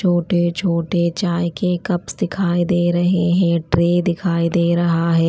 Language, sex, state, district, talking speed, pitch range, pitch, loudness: Hindi, female, Chandigarh, Chandigarh, 160 wpm, 170-175 Hz, 175 Hz, -18 LUFS